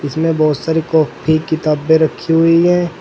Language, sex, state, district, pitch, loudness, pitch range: Hindi, male, Uttar Pradesh, Saharanpur, 160 Hz, -14 LUFS, 155-165 Hz